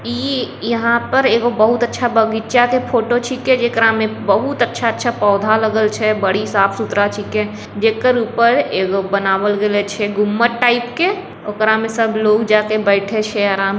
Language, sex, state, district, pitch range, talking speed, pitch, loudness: Angika, female, Bihar, Begusarai, 210-240 Hz, 185 wpm, 220 Hz, -16 LUFS